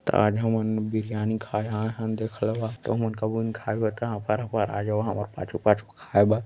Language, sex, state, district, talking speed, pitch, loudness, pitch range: Chhattisgarhi, male, Chhattisgarh, Korba, 230 wpm, 110 Hz, -27 LUFS, 105-110 Hz